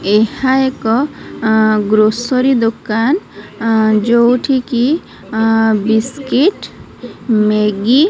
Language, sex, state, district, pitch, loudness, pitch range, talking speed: Odia, female, Odisha, Sambalpur, 225 Hz, -14 LUFS, 220-265 Hz, 90 wpm